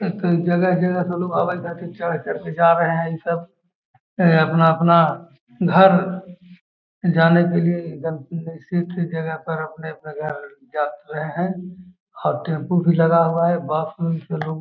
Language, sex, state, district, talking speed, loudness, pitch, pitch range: Magahi, male, Bihar, Gaya, 170 wpm, -20 LUFS, 170 Hz, 160-175 Hz